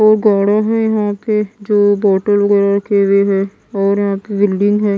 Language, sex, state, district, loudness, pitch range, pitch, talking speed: Hindi, female, Bihar, West Champaran, -14 LUFS, 200-210 Hz, 205 Hz, 135 wpm